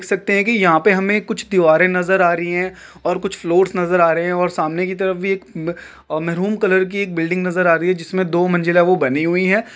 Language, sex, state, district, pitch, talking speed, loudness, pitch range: Hindi, male, West Bengal, Kolkata, 180 Hz, 265 wpm, -17 LUFS, 175-195 Hz